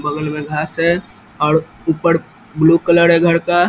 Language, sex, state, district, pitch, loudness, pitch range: Hindi, male, Bihar, East Champaran, 165 Hz, -15 LUFS, 155-170 Hz